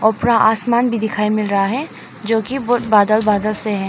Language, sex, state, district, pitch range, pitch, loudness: Hindi, female, Arunachal Pradesh, Papum Pare, 210-235 Hz, 220 Hz, -16 LUFS